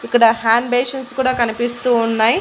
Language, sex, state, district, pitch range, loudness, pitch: Telugu, female, Andhra Pradesh, Annamaya, 230-245 Hz, -16 LUFS, 240 Hz